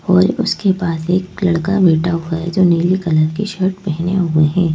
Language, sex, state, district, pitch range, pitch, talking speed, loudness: Hindi, female, Madhya Pradesh, Bhopal, 165-185 Hz, 175 Hz, 200 wpm, -16 LUFS